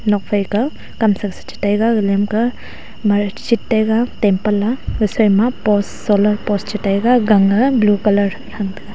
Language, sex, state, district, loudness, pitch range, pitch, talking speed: Wancho, female, Arunachal Pradesh, Longding, -16 LUFS, 205-225 Hz, 210 Hz, 165 wpm